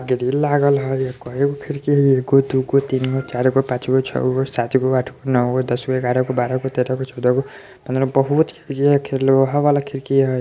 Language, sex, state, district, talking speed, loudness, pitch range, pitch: Bajjika, female, Bihar, Vaishali, 235 wpm, -19 LUFS, 130-140 Hz, 130 Hz